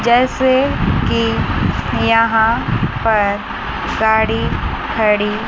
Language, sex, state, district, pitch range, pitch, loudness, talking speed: Hindi, female, Chandigarh, Chandigarh, 220-240 Hz, 225 Hz, -16 LUFS, 65 wpm